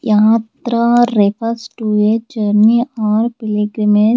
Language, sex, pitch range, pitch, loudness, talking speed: English, female, 210-235 Hz, 220 Hz, -14 LUFS, 100 wpm